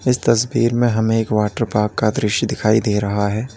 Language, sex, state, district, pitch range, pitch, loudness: Hindi, male, Uttar Pradesh, Lalitpur, 105-120 Hz, 110 Hz, -18 LUFS